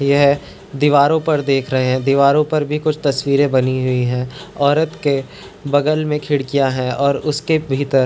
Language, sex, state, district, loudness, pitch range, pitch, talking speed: Hindi, male, Uttarakhand, Tehri Garhwal, -17 LUFS, 135-150 Hz, 140 Hz, 180 wpm